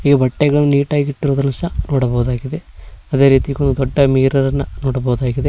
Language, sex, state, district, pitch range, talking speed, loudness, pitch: Kannada, male, Karnataka, Koppal, 130-140 Hz, 110 wpm, -16 LUFS, 135 Hz